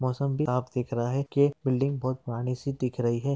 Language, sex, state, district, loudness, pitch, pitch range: Hindi, male, Chhattisgarh, Raigarh, -28 LUFS, 130 Hz, 125-140 Hz